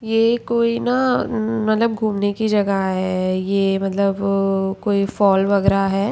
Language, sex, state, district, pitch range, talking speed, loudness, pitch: Hindi, female, Bihar, Samastipur, 195-220 Hz, 155 wpm, -19 LUFS, 200 Hz